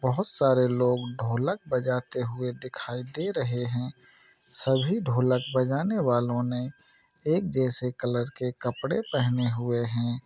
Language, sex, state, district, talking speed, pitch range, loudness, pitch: Hindi, male, Maharashtra, Nagpur, 125 wpm, 120-130 Hz, -28 LUFS, 125 Hz